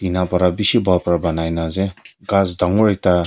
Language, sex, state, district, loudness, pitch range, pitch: Nagamese, male, Nagaland, Kohima, -17 LUFS, 85-100 Hz, 90 Hz